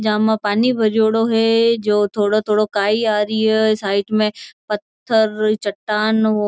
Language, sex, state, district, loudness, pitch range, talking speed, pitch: Marwari, female, Rajasthan, Churu, -17 LUFS, 210-220 Hz, 150 wpm, 215 Hz